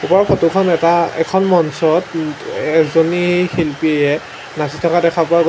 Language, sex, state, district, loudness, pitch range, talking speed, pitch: Assamese, male, Assam, Sonitpur, -15 LUFS, 160-175 Hz, 155 wpm, 165 Hz